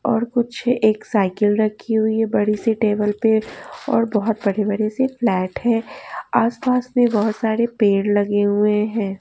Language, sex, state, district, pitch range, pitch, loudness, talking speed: Hindi, female, Haryana, Jhajjar, 210-230 Hz, 215 Hz, -19 LUFS, 165 wpm